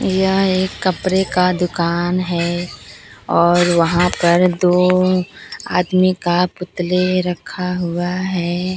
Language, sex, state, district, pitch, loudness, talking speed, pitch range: Hindi, female, Bihar, Katihar, 180 Hz, -17 LUFS, 110 wpm, 175-185 Hz